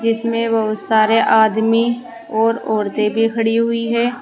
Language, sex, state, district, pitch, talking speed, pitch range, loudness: Hindi, female, Uttar Pradesh, Saharanpur, 225 Hz, 140 wpm, 220-230 Hz, -16 LUFS